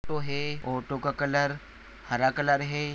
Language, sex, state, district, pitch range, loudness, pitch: Hindi, male, Maharashtra, Solapur, 140-145 Hz, -28 LUFS, 145 Hz